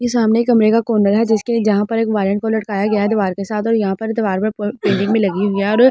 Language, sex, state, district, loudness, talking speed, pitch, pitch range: Hindi, female, Delhi, New Delhi, -16 LUFS, 295 wpm, 215 Hz, 200-225 Hz